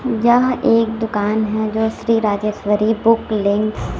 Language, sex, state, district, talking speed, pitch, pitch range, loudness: Hindi, female, Chhattisgarh, Raipur, 150 wpm, 220 Hz, 210-230 Hz, -17 LUFS